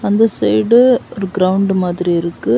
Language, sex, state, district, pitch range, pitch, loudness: Tamil, female, Tamil Nadu, Kanyakumari, 170-205 Hz, 185 Hz, -14 LUFS